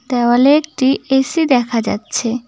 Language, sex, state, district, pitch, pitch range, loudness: Bengali, female, West Bengal, Cooch Behar, 255 Hz, 240-275 Hz, -15 LUFS